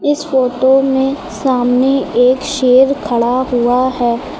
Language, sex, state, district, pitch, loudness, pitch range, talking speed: Hindi, female, Uttar Pradesh, Lucknow, 260 Hz, -13 LUFS, 245-270 Hz, 125 wpm